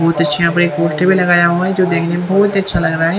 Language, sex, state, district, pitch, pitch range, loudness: Hindi, female, Haryana, Charkhi Dadri, 175 Hz, 170-185 Hz, -13 LUFS